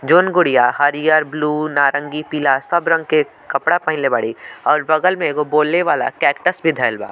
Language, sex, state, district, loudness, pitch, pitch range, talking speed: Bhojpuri, male, Bihar, Muzaffarpur, -16 LUFS, 150 Hz, 145-165 Hz, 175 wpm